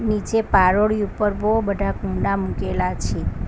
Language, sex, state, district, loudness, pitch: Gujarati, female, Gujarat, Valsad, -21 LUFS, 185 Hz